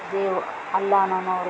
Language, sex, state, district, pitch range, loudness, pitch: Kannada, female, Karnataka, Raichur, 185-195 Hz, -23 LUFS, 190 Hz